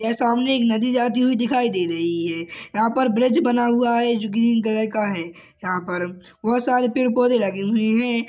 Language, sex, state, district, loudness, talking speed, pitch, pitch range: Hindi, male, Chhattisgarh, Kabirdham, -20 LUFS, 210 wpm, 230 Hz, 200-245 Hz